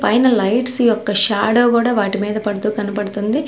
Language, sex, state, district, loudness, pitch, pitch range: Telugu, female, Andhra Pradesh, Sri Satya Sai, -16 LUFS, 215 Hz, 205-240 Hz